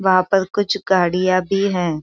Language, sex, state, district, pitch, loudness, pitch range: Hindi, female, Maharashtra, Aurangabad, 185 Hz, -18 LUFS, 180-195 Hz